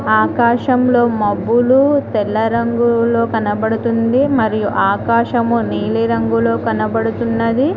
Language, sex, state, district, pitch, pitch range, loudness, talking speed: Telugu, female, Telangana, Mahabubabad, 230 Hz, 210-235 Hz, -15 LUFS, 75 wpm